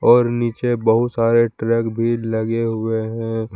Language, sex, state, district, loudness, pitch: Hindi, male, Jharkhand, Palamu, -19 LUFS, 115 Hz